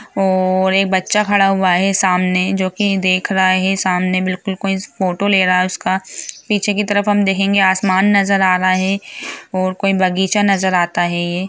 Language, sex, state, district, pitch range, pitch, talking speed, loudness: Hindi, female, Bihar, Sitamarhi, 185-195 Hz, 190 Hz, 195 wpm, -15 LUFS